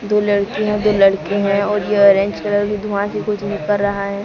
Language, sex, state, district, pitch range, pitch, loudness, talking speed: Hindi, female, Odisha, Sambalpur, 200-210 Hz, 205 Hz, -16 LUFS, 225 wpm